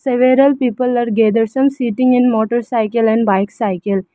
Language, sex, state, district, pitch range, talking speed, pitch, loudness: English, female, Arunachal Pradesh, Lower Dibang Valley, 220-250 Hz, 160 wpm, 235 Hz, -15 LUFS